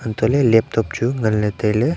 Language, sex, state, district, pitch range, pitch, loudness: Wancho, male, Arunachal Pradesh, Longding, 105-120 Hz, 115 Hz, -18 LUFS